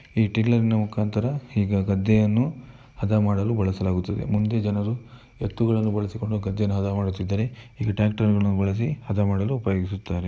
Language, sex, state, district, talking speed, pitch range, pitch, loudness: Kannada, male, Karnataka, Mysore, 130 wpm, 100-115 Hz, 105 Hz, -24 LUFS